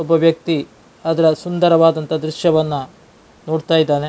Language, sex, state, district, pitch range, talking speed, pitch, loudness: Kannada, male, Karnataka, Dakshina Kannada, 155-165 Hz, 105 wpm, 160 Hz, -17 LUFS